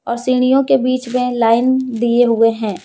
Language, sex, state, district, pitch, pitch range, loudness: Hindi, female, Jharkhand, Deoghar, 245 Hz, 230-255 Hz, -15 LUFS